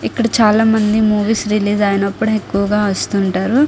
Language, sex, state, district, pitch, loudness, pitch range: Telugu, female, Andhra Pradesh, Guntur, 210 Hz, -15 LUFS, 200-220 Hz